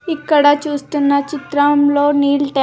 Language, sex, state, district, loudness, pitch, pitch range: Telugu, female, Andhra Pradesh, Sri Satya Sai, -15 LUFS, 290 Hz, 285-295 Hz